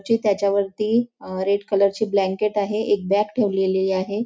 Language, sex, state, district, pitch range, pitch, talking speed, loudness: Marathi, female, Maharashtra, Nagpur, 195-215 Hz, 200 Hz, 170 wpm, -21 LUFS